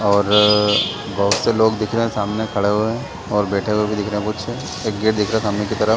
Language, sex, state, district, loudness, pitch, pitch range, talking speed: Hindi, male, Chhattisgarh, Raigarh, -18 LUFS, 105 Hz, 105-110 Hz, 260 wpm